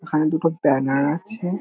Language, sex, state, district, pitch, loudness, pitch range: Bengali, male, West Bengal, Kolkata, 160 Hz, -21 LUFS, 150-170 Hz